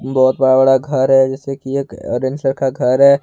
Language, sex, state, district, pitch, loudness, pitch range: Hindi, male, Jharkhand, Ranchi, 135 Hz, -15 LUFS, 130-135 Hz